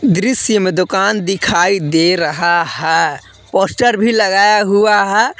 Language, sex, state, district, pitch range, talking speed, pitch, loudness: Hindi, male, Jharkhand, Palamu, 175-215 Hz, 135 wpm, 195 Hz, -13 LUFS